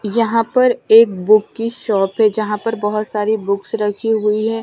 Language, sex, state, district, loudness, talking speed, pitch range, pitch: Hindi, female, Punjab, Fazilka, -16 LUFS, 195 wpm, 210-225 Hz, 215 Hz